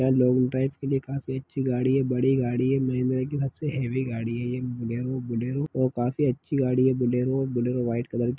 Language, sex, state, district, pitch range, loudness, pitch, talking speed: Hindi, male, Chhattisgarh, Kabirdham, 125-135 Hz, -26 LUFS, 130 Hz, 230 wpm